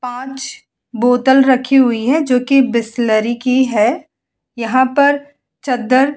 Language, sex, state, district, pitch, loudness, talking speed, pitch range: Hindi, female, Uttar Pradesh, Muzaffarnagar, 255 Hz, -14 LUFS, 125 wpm, 240-270 Hz